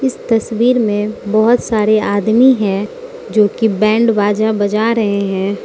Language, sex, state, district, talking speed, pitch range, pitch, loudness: Hindi, female, Mizoram, Aizawl, 150 wpm, 205-230 Hz, 215 Hz, -14 LUFS